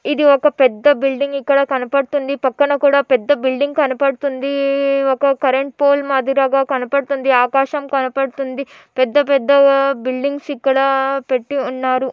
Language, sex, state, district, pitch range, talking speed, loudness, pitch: Telugu, female, Andhra Pradesh, Anantapur, 265-280 Hz, 120 wpm, -16 LUFS, 275 Hz